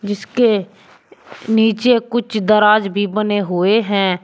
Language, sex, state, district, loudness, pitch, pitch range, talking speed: Hindi, male, Uttar Pradesh, Shamli, -15 LUFS, 210 Hz, 200-220 Hz, 115 wpm